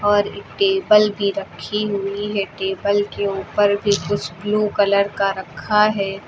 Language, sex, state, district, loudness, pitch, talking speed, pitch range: Hindi, female, Uttar Pradesh, Lucknow, -19 LUFS, 205 Hz, 155 wpm, 195-210 Hz